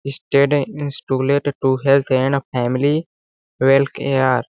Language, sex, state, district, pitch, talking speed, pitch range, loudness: Hindi, male, Chhattisgarh, Balrampur, 135 Hz, 105 wpm, 130-140 Hz, -18 LUFS